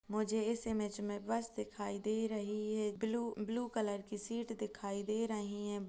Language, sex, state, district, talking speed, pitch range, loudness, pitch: Hindi, female, Uttar Pradesh, Jalaun, 195 wpm, 205-225 Hz, -39 LUFS, 215 Hz